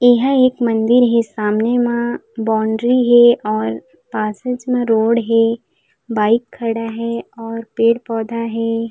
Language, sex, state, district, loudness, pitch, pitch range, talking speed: Chhattisgarhi, female, Chhattisgarh, Raigarh, -16 LUFS, 230 Hz, 225-240 Hz, 135 wpm